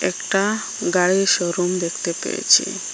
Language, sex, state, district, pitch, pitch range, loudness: Bengali, female, Assam, Hailakandi, 180 Hz, 175-195 Hz, -19 LUFS